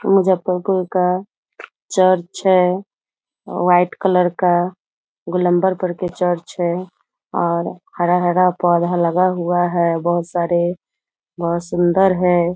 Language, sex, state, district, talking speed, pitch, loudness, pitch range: Hindi, female, Bihar, Muzaffarpur, 115 wpm, 180 Hz, -18 LUFS, 175-185 Hz